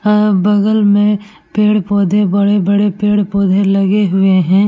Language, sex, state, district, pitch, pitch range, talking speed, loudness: Hindi, female, Uttar Pradesh, Etah, 205 Hz, 195-210 Hz, 115 wpm, -12 LUFS